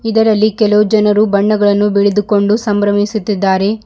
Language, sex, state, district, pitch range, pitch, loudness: Kannada, female, Karnataka, Bidar, 205-215 Hz, 210 Hz, -12 LUFS